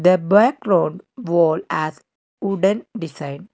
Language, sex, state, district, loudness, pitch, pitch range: English, male, Karnataka, Bangalore, -19 LUFS, 180 Hz, 160-200 Hz